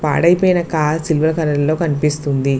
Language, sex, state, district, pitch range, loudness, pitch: Telugu, female, Telangana, Mahabubabad, 145-165 Hz, -16 LUFS, 155 Hz